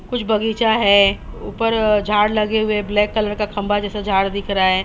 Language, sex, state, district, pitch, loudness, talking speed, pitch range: Hindi, female, Maharashtra, Mumbai Suburban, 210 Hz, -18 LUFS, 210 wpm, 200-215 Hz